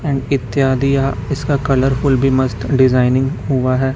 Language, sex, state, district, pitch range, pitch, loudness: Hindi, male, Chhattisgarh, Raipur, 130-140 Hz, 135 Hz, -15 LUFS